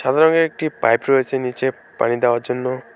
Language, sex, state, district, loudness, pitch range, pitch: Bengali, male, West Bengal, Alipurduar, -18 LUFS, 125-145 Hz, 130 Hz